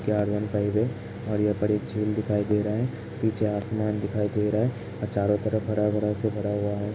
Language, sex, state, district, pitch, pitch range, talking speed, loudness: Hindi, male, Uttar Pradesh, Hamirpur, 105 Hz, 105-110 Hz, 240 wpm, -27 LUFS